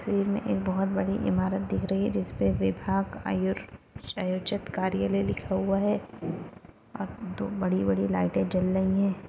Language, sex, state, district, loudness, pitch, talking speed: Hindi, female, Maharashtra, Aurangabad, -28 LUFS, 185 Hz, 155 wpm